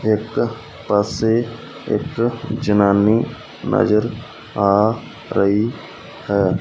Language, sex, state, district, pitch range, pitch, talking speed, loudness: Punjabi, male, Punjab, Fazilka, 100-115 Hz, 110 Hz, 75 wpm, -19 LUFS